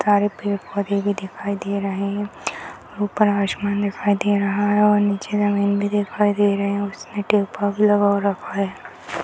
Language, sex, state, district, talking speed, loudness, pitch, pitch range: Hindi, female, Bihar, Purnia, 180 wpm, -21 LUFS, 205 Hz, 200-205 Hz